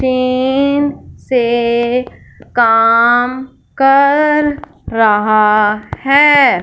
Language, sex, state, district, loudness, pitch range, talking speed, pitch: Hindi, female, Punjab, Fazilka, -12 LUFS, 230-280 Hz, 55 wpm, 255 Hz